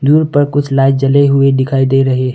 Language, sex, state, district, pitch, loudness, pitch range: Hindi, male, Arunachal Pradesh, Longding, 135 Hz, -11 LUFS, 135-140 Hz